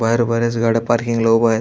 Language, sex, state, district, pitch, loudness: Marathi, male, Maharashtra, Aurangabad, 115 Hz, -17 LUFS